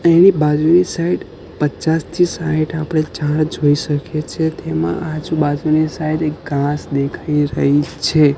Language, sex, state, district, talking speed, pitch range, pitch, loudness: Gujarati, male, Gujarat, Gandhinagar, 145 wpm, 145-160 Hz, 155 Hz, -17 LUFS